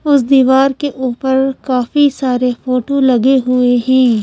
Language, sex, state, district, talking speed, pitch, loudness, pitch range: Hindi, female, Madhya Pradesh, Bhopal, 140 wpm, 260 Hz, -13 LUFS, 250-270 Hz